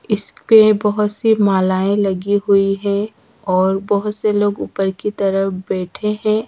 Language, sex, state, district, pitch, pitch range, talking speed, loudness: Hindi, female, Madhya Pradesh, Dhar, 205 Hz, 195-210 Hz, 155 wpm, -17 LUFS